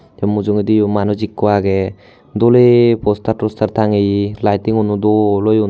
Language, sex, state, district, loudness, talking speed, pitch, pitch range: Chakma, male, Tripura, Unakoti, -14 LUFS, 135 wpm, 105 Hz, 105-110 Hz